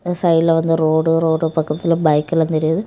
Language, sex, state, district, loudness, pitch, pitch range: Tamil, female, Tamil Nadu, Kanyakumari, -16 LUFS, 165 Hz, 160-165 Hz